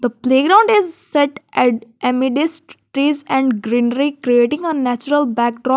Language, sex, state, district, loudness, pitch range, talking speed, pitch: English, female, Jharkhand, Garhwa, -16 LUFS, 245-295 Hz, 135 wpm, 270 Hz